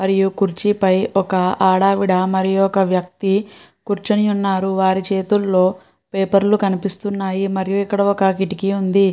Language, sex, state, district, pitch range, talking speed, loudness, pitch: Telugu, female, Andhra Pradesh, Chittoor, 190-200 Hz, 140 wpm, -17 LUFS, 195 Hz